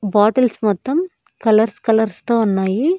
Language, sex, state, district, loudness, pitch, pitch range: Telugu, female, Andhra Pradesh, Annamaya, -17 LUFS, 220 Hz, 205-250 Hz